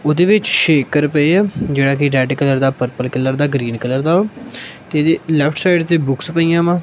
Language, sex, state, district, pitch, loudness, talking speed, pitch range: Punjabi, male, Punjab, Kapurthala, 150 Hz, -15 LUFS, 210 wpm, 135-170 Hz